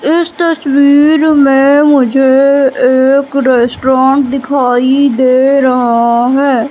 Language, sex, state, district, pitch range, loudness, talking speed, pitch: Hindi, female, Madhya Pradesh, Katni, 255-280 Hz, -9 LUFS, 90 wpm, 270 Hz